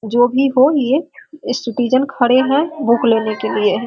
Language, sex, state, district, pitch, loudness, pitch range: Hindi, female, Bihar, Sitamarhi, 255 Hz, -15 LUFS, 240-275 Hz